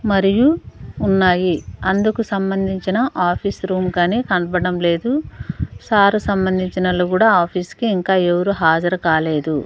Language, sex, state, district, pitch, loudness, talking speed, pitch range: Telugu, female, Andhra Pradesh, Sri Satya Sai, 185 Hz, -17 LUFS, 120 wpm, 175-200 Hz